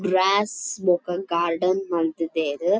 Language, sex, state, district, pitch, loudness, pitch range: Tulu, female, Karnataka, Dakshina Kannada, 180 Hz, -23 LUFS, 170-195 Hz